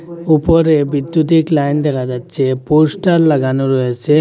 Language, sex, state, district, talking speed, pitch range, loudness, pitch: Bengali, male, Assam, Hailakandi, 115 wpm, 135-165 Hz, -14 LUFS, 150 Hz